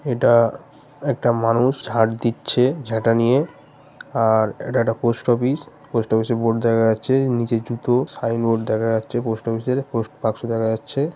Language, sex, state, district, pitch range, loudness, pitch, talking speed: Bengali, male, West Bengal, Kolkata, 115-130 Hz, -20 LUFS, 115 Hz, 165 wpm